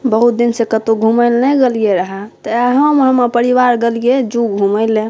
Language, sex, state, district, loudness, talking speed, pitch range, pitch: Maithili, female, Bihar, Saharsa, -13 LUFS, 210 wpm, 220-250 Hz, 235 Hz